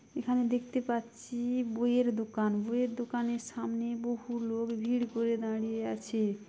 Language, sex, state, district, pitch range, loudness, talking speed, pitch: Bengali, female, West Bengal, Dakshin Dinajpur, 225-240 Hz, -33 LUFS, 130 wpm, 235 Hz